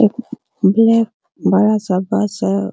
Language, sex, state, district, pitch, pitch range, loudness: Hindi, female, Bihar, Araria, 215 Hz, 190-230 Hz, -16 LUFS